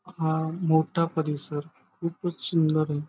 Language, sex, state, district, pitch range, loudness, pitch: Marathi, male, Maharashtra, Pune, 155-165 Hz, -27 LUFS, 160 Hz